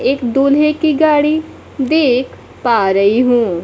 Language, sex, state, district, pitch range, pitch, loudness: Hindi, female, Bihar, Kaimur, 240-300 Hz, 270 Hz, -13 LUFS